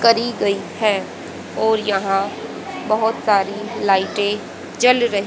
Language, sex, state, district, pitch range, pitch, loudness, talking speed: Hindi, female, Haryana, Rohtak, 200-225 Hz, 210 Hz, -19 LUFS, 115 wpm